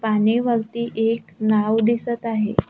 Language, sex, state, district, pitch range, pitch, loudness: Marathi, female, Maharashtra, Gondia, 215-235 Hz, 225 Hz, -21 LUFS